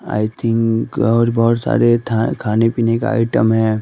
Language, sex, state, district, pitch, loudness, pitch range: Hindi, male, Uttar Pradesh, Varanasi, 115 Hz, -16 LUFS, 110-115 Hz